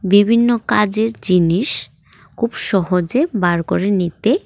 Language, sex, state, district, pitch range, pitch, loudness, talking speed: Bengali, female, Tripura, West Tripura, 180-230 Hz, 205 Hz, -16 LUFS, 105 wpm